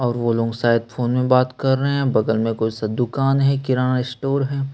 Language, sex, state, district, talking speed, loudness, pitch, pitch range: Hindi, male, Chhattisgarh, Sukma, 240 wpm, -20 LUFS, 125 Hz, 115-135 Hz